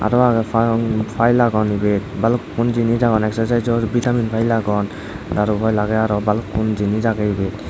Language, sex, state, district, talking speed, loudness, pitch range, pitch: Chakma, male, Tripura, Dhalai, 155 wpm, -18 LUFS, 105-115 Hz, 110 Hz